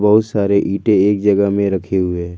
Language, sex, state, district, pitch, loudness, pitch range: Hindi, male, Jharkhand, Ranchi, 100 Hz, -15 LUFS, 95-105 Hz